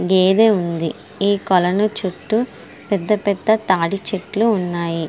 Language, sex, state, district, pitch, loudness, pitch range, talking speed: Telugu, female, Andhra Pradesh, Srikakulam, 195 Hz, -18 LUFS, 180-210 Hz, 120 wpm